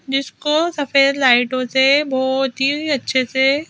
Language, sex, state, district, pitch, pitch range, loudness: Hindi, female, Madhya Pradesh, Bhopal, 270 Hz, 260-290 Hz, -17 LUFS